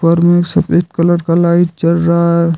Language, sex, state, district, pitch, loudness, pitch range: Hindi, male, Jharkhand, Deoghar, 170 Hz, -12 LUFS, 170-175 Hz